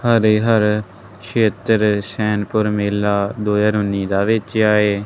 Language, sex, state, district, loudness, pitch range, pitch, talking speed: Punjabi, male, Punjab, Kapurthala, -17 LUFS, 100-110 Hz, 105 Hz, 130 wpm